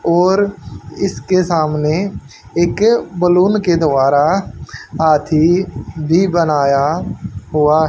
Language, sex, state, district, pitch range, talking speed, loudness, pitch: Hindi, male, Haryana, Charkhi Dadri, 150-185 Hz, 85 wpm, -15 LUFS, 165 Hz